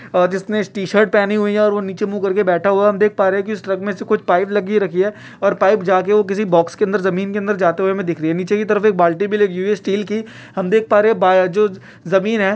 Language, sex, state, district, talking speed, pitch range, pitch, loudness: Hindi, male, Uttarakhand, Uttarkashi, 340 wpm, 190-210 Hz, 200 Hz, -16 LUFS